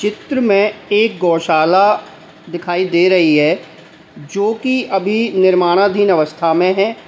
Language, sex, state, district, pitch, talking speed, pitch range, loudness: Hindi, male, Uttar Pradesh, Lalitpur, 185 Hz, 135 wpm, 165-205 Hz, -14 LUFS